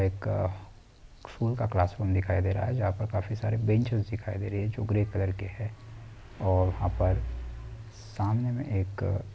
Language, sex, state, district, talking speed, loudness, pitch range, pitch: Hindi, male, Uttarakhand, Uttarkashi, 185 wpm, -30 LUFS, 95-110 Hz, 105 Hz